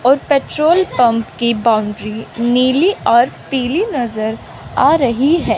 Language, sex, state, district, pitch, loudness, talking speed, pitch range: Hindi, female, Chandigarh, Chandigarh, 245 Hz, -15 LUFS, 130 wpm, 225-280 Hz